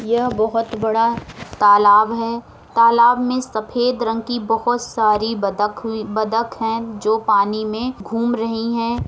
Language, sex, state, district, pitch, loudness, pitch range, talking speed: Hindi, female, Uttar Pradesh, Etah, 225 Hz, -18 LUFS, 215-235 Hz, 145 wpm